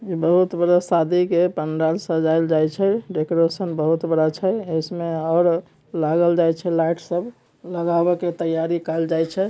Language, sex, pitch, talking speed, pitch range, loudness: Maithili, male, 170 Hz, 125 wpm, 160-175 Hz, -20 LUFS